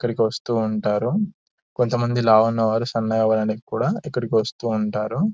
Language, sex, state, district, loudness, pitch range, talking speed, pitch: Telugu, male, Telangana, Nalgonda, -21 LUFS, 110-120 Hz, 125 wpm, 115 Hz